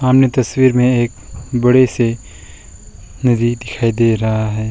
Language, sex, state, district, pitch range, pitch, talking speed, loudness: Hindi, male, West Bengal, Alipurduar, 110-125 Hz, 115 Hz, 140 wpm, -15 LUFS